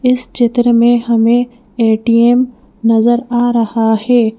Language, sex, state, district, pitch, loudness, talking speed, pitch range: Hindi, female, Madhya Pradesh, Bhopal, 240 Hz, -12 LUFS, 125 wpm, 230-245 Hz